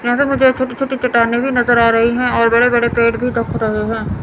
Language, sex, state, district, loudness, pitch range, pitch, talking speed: Hindi, female, Chandigarh, Chandigarh, -14 LUFS, 230-250 Hz, 240 Hz, 240 wpm